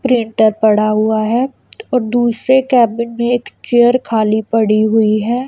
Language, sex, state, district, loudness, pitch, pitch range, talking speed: Hindi, female, Punjab, Kapurthala, -14 LUFS, 230 Hz, 220-245 Hz, 155 wpm